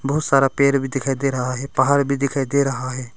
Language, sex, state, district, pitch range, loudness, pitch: Hindi, male, Arunachal Pradesh, Longding, 130-140 Hz, -19 LUFS, 135 Hz